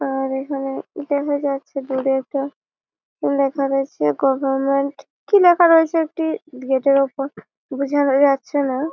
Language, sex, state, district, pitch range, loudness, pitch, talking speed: Bengali, female, West Bengal, Malda, 270-285 Hz, -19 LUFS, 275 Hz, 135 wpm